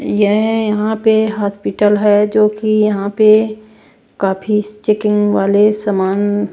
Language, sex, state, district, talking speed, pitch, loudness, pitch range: Hindi, female, Bihar, West Champaran, 120 wpm, 210 Hz, -14 LUFS, 205-215 Hz